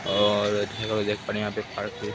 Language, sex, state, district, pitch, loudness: Hindi, male, Bihar, Araria, 105 Hz, -26 LUFS